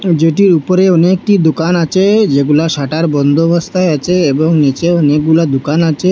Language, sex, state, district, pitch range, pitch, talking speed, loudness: Bengali, male, Assam, Hailakandi, 150-180 Hz, 165 Hz, 135 wpm, -11 LUFS